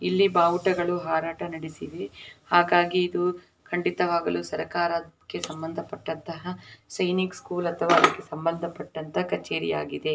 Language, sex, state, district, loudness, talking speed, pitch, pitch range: Kannada, female, Karnataka, Belgaum, -26 LUFS, 85 wpm, 175 Hz, 165-180 Hz